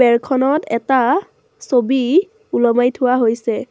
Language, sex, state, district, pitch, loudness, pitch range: Assamese, female, Assam, Sonitpur, 260 Hz, -16 LUFS, 240-355 Hz